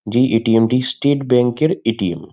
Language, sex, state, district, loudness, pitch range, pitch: Bengali, male, West Bengal, Malda, -16 LUFS, 115-130 Hz, 120 Hz